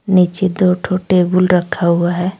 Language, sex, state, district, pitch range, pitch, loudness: Hindi, female, Jharkhand, Deoghar, 175-185 Hz, 180 Hz, -15 LUFS